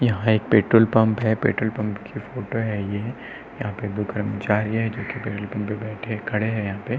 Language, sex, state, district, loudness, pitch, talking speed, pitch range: Hindi, male, Uttar Pradesh, Etah, -23 LUFS, 110 Hz, 215 wpm, 105-115 Hz